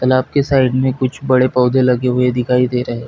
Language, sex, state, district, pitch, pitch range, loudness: Hindi, male, Chhattisgarh, Bilaspur, 125 Hz, 125-130 Hz, -15 LUFS